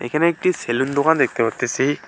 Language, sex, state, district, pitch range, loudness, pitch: Bengali, male, West Bengal, Alipurduar, 120-160 Hz, -19 LUFS, 140 Hz